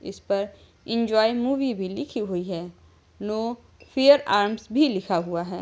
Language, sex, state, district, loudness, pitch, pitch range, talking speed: Hindi, female, Uttar Pradesh, Jyotiba Phule Nagar, -24 LUFS, 215 Hz, 185-240 Hz, 180 wpm